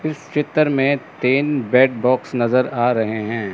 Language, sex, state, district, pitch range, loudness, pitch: Hindi, male, Chandigarh, Chandigarh, 120-145 Hz, -18 LUFS, 130 Hz